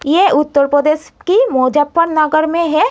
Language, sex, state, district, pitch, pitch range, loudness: Hindi, female, Uttar Pradesh, Muzaffarnagar, 310 Hz, 295-335 Hz, -13 LUFS